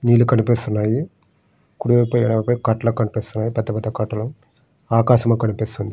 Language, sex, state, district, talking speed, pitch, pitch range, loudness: Telugu, male, Andhra Pradesh, Srikakulam, 140 wpm, 115 Hz, 110-120 Hz, -19 LUFS